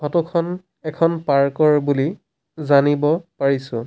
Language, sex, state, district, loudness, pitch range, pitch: Assamese, male, Assam, Sonitpur, -19 LUFS, 140-165 Hz, 150 Hz